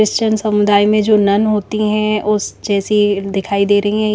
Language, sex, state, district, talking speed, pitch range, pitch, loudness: Hindi, female, Chandigarh, Chandigarh, 190 wpm, 205-215 Hz, 210 Hz, -14 LUFS